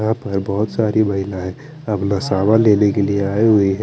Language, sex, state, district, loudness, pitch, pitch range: Hindi, male, Chandigarh, Chandigarh, -17 LUFS, 105 Hz, 100-110 Hz